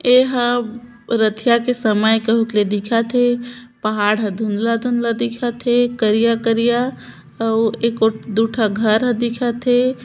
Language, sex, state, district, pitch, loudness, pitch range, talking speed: Hindi, female, Chhattisgarh, Bilaspur, 230 Hz, -17 LUFS, 220-245 Hz, 145 wpm